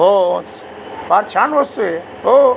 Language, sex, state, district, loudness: Marathi, male, Maharashtra, Aurangabad, -15 LUFS